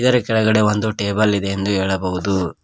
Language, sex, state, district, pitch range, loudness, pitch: Kannada, male, Karnataka, Koppal, 95-110 Hz, -18 LUFS, 100 Hz